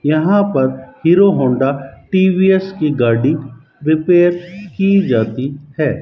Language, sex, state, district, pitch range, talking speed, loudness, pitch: Hindi, male, Rajasthan, Bikaner, 135-190 Hz, 110 wpm, -14 LUFS, 155 Hz